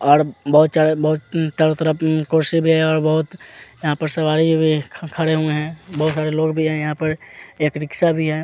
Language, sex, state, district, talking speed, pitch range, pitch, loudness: Hindi, male, Bihar, Muzaffarpur, 190 wpm, 155-160 Hz, 155 Hz, -18 LUFS